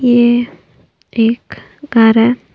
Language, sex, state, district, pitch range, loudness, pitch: Hindi, female, Maharashtra, Mumbai Suburban, 225-245 Hz, -13 LUFS, 240 Hz